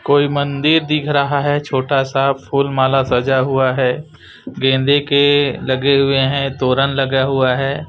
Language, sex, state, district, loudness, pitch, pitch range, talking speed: Hindi, male, Chhattisgarh, Raipur, -15 LUFS, 135 Hz, 135-145 Hz, 160 wpm